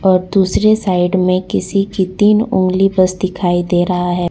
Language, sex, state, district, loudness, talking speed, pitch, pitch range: Hindi, female, Jharkhand, Deoghar, -14 LUFS, 180 wpm, 185 Hz, 180-195 Hz